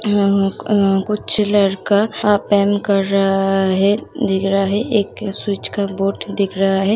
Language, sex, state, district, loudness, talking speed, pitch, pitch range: Hindi, female, Uttar Pradesh, Muzaffarnagar, -17 LUFS, 155 wpm, 200 Hz, 195-210 Hz